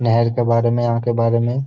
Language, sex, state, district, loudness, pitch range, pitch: Hindi, male, Uttar Pradesh, Jyotiba Phule Nagar, -17 LUFS, 115-120 Hz, 115 Hz